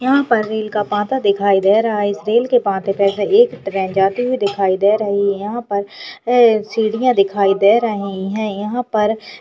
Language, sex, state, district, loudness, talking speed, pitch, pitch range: Hindi, female, Uttarakhand, Uttarkashi, -16 LUFS, 210 wpm, 210 Hz, 200-230 Hz